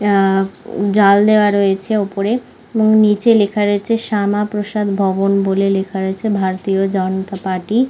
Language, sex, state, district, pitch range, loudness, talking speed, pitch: Bengali, female, West Bengal, Malda, 195-210 Hz, -15 LUFS, 130 wpm, 200 Hz